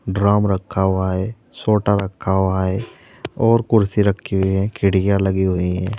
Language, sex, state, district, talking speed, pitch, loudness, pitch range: Hindi, male, Uttar Pradesh, Saharanpur, 170 wpm, 100 Hz, -18 LUFS, 95-105 Hz